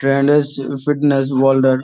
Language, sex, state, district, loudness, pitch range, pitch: Bengali, male, West Bengal, Malda, -15 LUFS, 135-145 Hz, 135 Hz